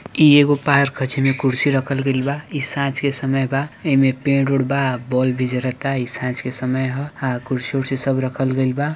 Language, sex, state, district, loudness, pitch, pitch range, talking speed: Hindi, male, Bihar, Gopalganj, -19 LUFS, 135 Hz, 130-140 Hz, 215 wpm